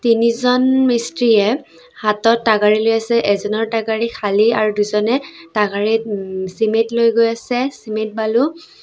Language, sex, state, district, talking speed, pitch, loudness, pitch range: Assamese, female, Assam, Sonitpur, 110 wpm, 225 Hz, -17 LUFS, 210-235 Hz